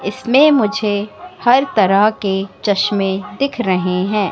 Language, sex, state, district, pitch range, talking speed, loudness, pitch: Hindi, female, Madhya Pradesh, Katni, 195-245 Hz, 125 wpm, -15 LUFS, 210 Hz